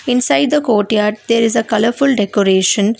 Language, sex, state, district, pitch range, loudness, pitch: English, female, Karnataka, Bangalore, 210-245 Hz, -14 LUFS, 220 Hz